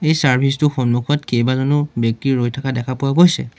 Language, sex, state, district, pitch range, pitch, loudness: Assamese, male, Assam, Sonitpur, 120-145 Hz, 135 Hz, -17 LUFS